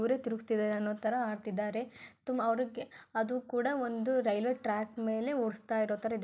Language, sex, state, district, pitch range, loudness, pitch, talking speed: Kannada, female, Karnataka, Gulbarga, 215-245 Hz, -34 LUFS, 225 Hz, 155 wpm